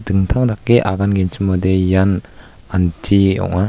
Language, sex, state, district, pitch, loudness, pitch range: Garo, male, Meghalaya, West Garo Hills, 95 Hz, -16 LUFS, 95-100 Hz